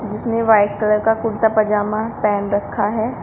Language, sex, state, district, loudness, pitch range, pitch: Hindi, female, Uttar Pradesh, Shamli, -18 LUFS, 210-220 Hz, 215 Hz